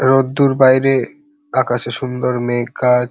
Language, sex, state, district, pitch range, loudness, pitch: Bengali, male, West Bengal, Paschim Medinipur, 125-135 Hz, -16 LUFS, 130 Hz